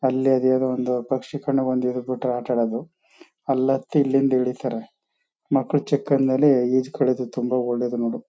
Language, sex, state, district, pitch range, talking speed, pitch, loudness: Kannada, male, Karnataka, Chamarajanagar, 125-135 Hz, 115 wpm, 130 Hz, -22 LUFS